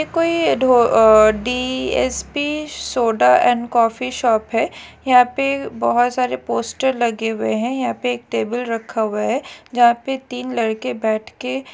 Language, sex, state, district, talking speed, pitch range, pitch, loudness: Hindi, female, Maharashtra, Solapur, 165 wpm, 225-260 Hz, 245 Hz, -18 LUFS